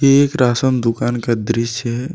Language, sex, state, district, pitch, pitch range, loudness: Hindi, male, Jharkhand, Deoghar, 120 Hz, 115-130 Hz, -17 LUFS